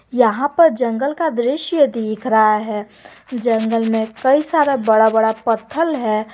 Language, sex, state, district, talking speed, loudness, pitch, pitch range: Hindi, female, Jharkhand, Garhwa, 150 wpm, -17 LUFS, 235 Hz, 220-285 Hz